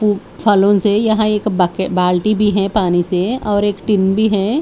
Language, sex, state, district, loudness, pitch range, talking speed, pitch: Hindi, female, Haryana, Charkhi Dadri, -15 LUFS, 190-210 Hz, 180 wpm, 205 Hz